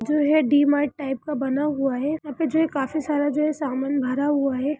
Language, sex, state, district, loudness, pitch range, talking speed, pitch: Hindi, male, Bihar, Jamui, -23 LUFS, 275-300 Hz, 235 wpm, 290 Hz